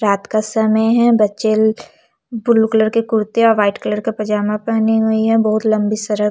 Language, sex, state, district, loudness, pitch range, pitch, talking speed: Hindi, female, Chhattisgarh, Jashpur, -15 LUFS, 210-225 Hz, 220 Hz, 200 wpm